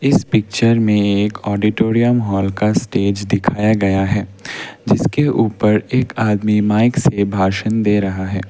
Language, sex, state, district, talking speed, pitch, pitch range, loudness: Hindi, male, Assam, Kamrup Metropolitan, 150 wpm, 105 Hz, 100-115 Hz, -16 LUFS